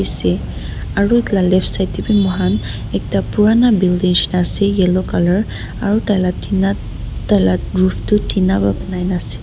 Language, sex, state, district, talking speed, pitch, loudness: Nagamese, female, Nagaland, Dimapur, 160 wpm, 185 Hz, -16 LUFS